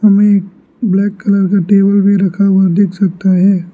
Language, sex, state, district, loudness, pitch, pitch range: Hindi, male, Arunachal Pradesh, Lower Dibang Valley, -11 LUFS, 195 Hz, 190-200 Hz